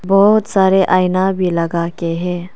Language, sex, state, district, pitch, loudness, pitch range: Hindi, female, Arunachal Pradesh, Papum Pare, 185 Hz, -15 LUFS, 175-190 Hz